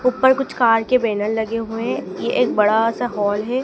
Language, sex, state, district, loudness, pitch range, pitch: Hindi, female, Madhya Pradesh, Dhar, -19 LUFS, 220-250 Hz, 230 Hz